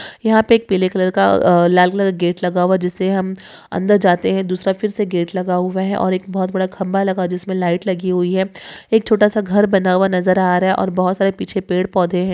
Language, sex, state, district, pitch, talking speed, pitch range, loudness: Hindi, female, Maharashtra, Chandrapur, 185 Hz, 255 wpm, 180-195 Hz, -16 LUFS